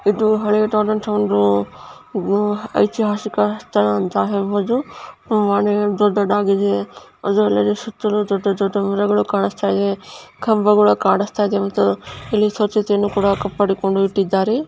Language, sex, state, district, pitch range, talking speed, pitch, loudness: Kannada, female, Karnataka, Bijapur, 190-210 Hz, 105 wpm, 205 Hz, -18 LUFS